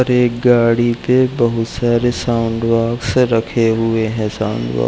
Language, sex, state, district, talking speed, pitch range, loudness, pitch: Hindi, male, Uttarakhand, Uttarkashi, 170 wpm, 115-120 Hz, -16 LUFS, 115 Hz